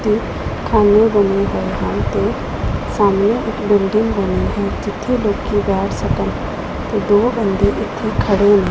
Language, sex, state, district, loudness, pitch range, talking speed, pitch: Punjabi, female, Punjab, Pathankot, -17 LUFS, 195-215 Hz, 150 wpm, 205 Hz